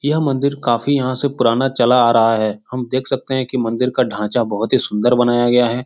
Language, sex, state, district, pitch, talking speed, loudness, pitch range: Hindi, male, Bihar, Supaul, 125 Hz, 245 wpm, -17 LUFS, 115-130 Hz